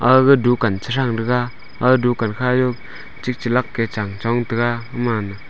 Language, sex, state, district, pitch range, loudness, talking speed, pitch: Wancho, male, Arunachal Pradesh, Longding, 115-125 Hz, -19 LUFS, 140 wpm, 120 Hz